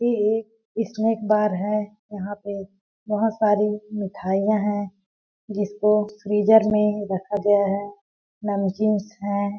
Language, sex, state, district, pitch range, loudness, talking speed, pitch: Hindi, female, Chhattisgarh, Balrampur, 200-215 Hz, -23 LUFS, 125 wpm, 210 Hz